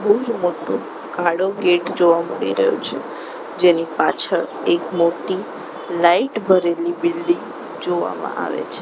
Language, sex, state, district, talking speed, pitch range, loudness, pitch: Gujarati, female, Gujarat, Gandhinagar, 130 wpm, 170-235 Hz, -19 LUFS, 180 Hz